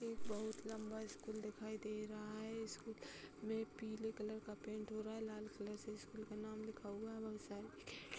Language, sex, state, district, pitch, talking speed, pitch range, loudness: Hindi, female, Uttar Pradesh, Hamirpur, 215 Hz, 215 wpm, 215-220 Hz, -49 LUFS